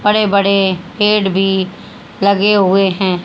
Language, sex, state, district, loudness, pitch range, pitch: Hindi, female, Haryana, Rohtak, -13 LUFS, 190-205 Hz, 195 Hz